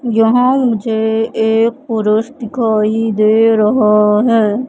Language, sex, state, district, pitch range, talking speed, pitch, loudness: Hindi, female, Madhya Pradesh, Katni, 215-230 Hz, 100 wpm, 225 Hz, -13 LUFS